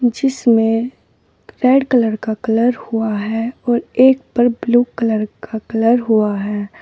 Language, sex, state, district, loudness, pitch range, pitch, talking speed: Hindi, female, Uttar Pradesh, Saharanpur, -16 LUFS, 220-245 Hz, 230 Hz, 140 wpm